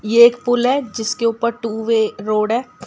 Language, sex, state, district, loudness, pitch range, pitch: Hindi, male, Bihar, Sitamarhi, -17 LUFS, 220-240 Hz, 230 Hz